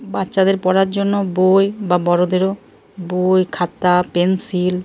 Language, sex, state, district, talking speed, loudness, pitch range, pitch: Bengali, male, Jharkhand, Jamtara, 125 wpm, -17 LUFS, 180-195 Hz, 185 Hz